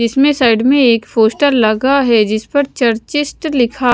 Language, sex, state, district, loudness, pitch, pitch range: Hindi, female, Chandigarh, Chandigarh, -13 LUFS, 245 Hz, 230-280 Hz